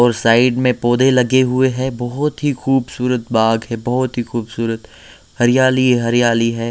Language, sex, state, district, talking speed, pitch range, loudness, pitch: Hindi, male, Bihar, Patna, 170 wpm, 115-130 Hz, -16 LUFS, 125 Hz